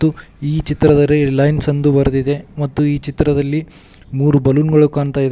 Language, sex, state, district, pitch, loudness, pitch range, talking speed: Kannada, male, Karnataka, Koppal, 145 Hz, -15 LUFS, 145-150 Hz, 160 wpm